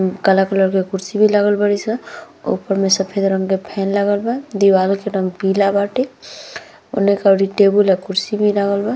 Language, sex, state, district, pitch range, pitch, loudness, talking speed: Bhojpuri, female, Bihar, Gopalganj, 195-210 Hz, 200 Hz, -16 LUFS, 200 wpm